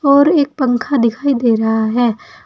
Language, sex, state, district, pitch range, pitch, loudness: Hindi, female, Uttar Pradesh, Saharanpur, 230-280 Hz, 245 Hz, -14 LUFS